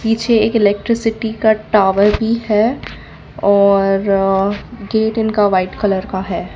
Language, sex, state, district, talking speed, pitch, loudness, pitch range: Hindi, female, Gujarat, Valsad, 130 wpm, 210 Hz, -15 LUFS, 195-225 Hz